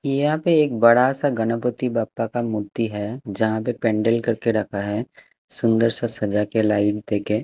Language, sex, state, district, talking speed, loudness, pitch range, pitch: Hindi, male, Haryana, Jhajjar, 185 wpm, -21 LUFS, 105-120 Hz, 115 Hz